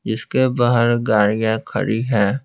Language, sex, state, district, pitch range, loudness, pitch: Hindi, male, Bihar, Patna, 110-120 Hz, -18 LUFS, 115 Hz